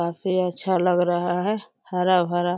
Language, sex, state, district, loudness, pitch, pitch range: Hindi, female, Uttar Pradesh, Deoria, -23 LUFS, 180 Hz, 175-185 Hz